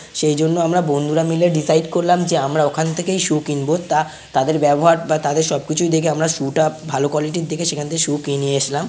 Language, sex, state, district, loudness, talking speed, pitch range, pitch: Bengali, male, West Bengal, North 24 Parganas, -18 LUFS, 225 wpm, 150-165 Hz, 155 Hz